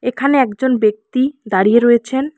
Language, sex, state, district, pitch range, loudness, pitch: Bengali, female, West Bengal, Alipurduar, 220-265 Hz, -15 LUFS, 250 Hz